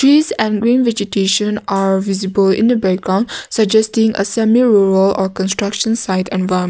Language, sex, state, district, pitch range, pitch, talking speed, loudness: English, female, Nagaland, Kohima, 190-225 Hz, 200 Hz, 145 wpm, -15 LUFS